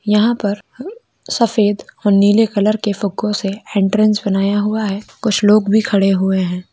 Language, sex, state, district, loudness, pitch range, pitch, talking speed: Hindi, male, Rajasthan, Churu, -16 LUFS, 200-215 Hz, 205 Hz, 180 wpm